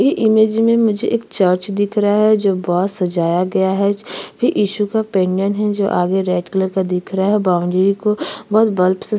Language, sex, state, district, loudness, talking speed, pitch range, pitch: Hindi, female, Chhattisgarh, Sukma, -16 LUFS, 220 wpm, 185-210 Hz, 195 Hz